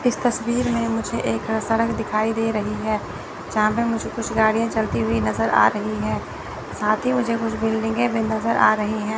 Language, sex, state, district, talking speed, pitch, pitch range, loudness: Hindi, male, Chandigarh, Chandigarh, 200 wpm, 220 Hz, 210-230 Hz, -21 LUFS